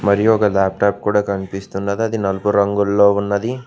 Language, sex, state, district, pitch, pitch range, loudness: Telugu, male, Telangana, Mahabubabad, 100 Hz, 100-105 Hz, -17 LUFS